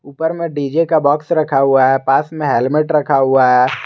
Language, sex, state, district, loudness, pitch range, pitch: Hindi, male, Jharkhand, Garhwa, -14 LUFS, 135-155 Hz, 145 Hz